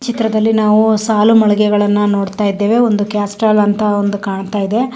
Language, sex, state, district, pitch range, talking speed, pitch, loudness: Kannada, female, Karnataka, Mysore, 205-220 Hz, 155 wpm, 210 Hz, -13 LUFS